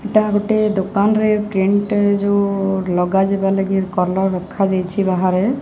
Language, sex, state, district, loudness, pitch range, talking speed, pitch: Odia, female, Odisha, Sambalpur, -17 LUFS, 190-205 Hz, 130 wpm, 195 Hz